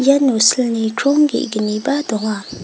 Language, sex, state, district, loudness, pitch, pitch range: Garo, female, Meghalaya, West Garo Hills, -16 LUFS, 235 Hz, 215-280 Hz